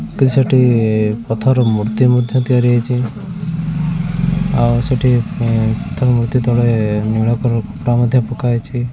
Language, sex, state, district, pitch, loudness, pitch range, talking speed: Odia, male, Odisha, Khordha, 120 Hz, -15 LUFS, 115-130 Hz, 125 wpm